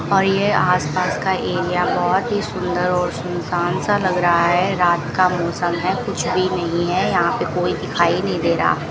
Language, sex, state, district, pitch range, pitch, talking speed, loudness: Hindi, female, Rajasthan, Bikaner, 175-185 Hz, 180 Hz, 210 wpm, -19 LUFS